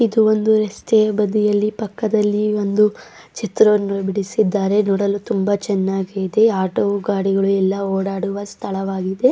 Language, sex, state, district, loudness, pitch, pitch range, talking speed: Kannada, female, Karnataka, Dakshina Kannada, -18 LUFS, 205 Hz, 195-215 Hz, 95 wpm